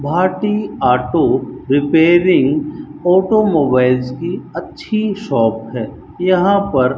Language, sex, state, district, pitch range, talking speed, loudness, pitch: Hindi, male, Rajasthan, Bikaner, 130-205 Hz, 85 wpm, -15 LUFS, 175 Hz